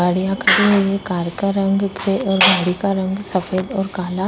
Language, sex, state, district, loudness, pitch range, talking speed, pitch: Hindi, female, Uttar Pradesh, Hamirpur, -17 LUFS, 185-195 Hz, 210 wpm, 195 Hz